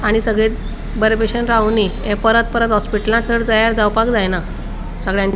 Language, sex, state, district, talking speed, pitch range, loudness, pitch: Konkani, female, Goa, North and South Goa, 135 wpm, 210-230 Hz, -16 LUFS, 220 Hz